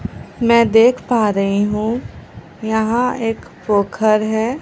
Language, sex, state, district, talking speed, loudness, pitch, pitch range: Hindi, female, Bihar, Katihar, 115 wpm, -16 LUFS, 220 Hz, 210-235 Hz